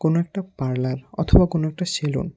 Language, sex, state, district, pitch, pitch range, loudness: Bengali, male, Tripura, West Tripura, 160 Hz, 135-180 Hz, -22 LUFS